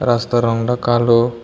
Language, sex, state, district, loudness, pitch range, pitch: Bengali, male, Tripura, West Tripura, -16 LUFS, 115-120 Hz, 120 Hz